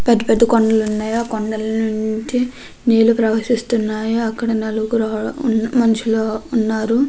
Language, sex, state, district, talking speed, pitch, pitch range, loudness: Telugu, female, Andhra Pradesh, Krishna, 110 wpm, 225 Hz, 220-230 Hz, -18 LUFS